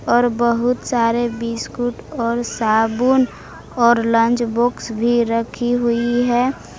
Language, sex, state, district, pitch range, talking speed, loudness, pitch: Hindi, female, Jharkhand, Palamu, 230-245 Hz, 115 wpm, -18 LUFS, 235 Hz